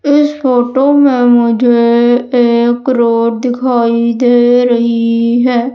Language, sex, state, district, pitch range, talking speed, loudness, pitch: Hindi, female, Madhya Pradesh, Umaria, 235-250 Hz, 105 wpm, -10 LUFS, 240 Hz